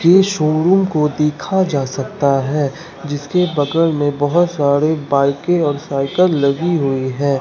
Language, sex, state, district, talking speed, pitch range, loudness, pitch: Hindi, male, Bihar, Katihar, 145 wpm, 140-170 Hz, -16 LUFS, 150 Hz